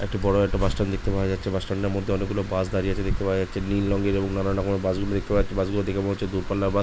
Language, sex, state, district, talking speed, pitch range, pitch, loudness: Bengali, male, West Bengal, Jhargram, 305 wpm, 95-100 Hz, 100 Hz, -25 LUFS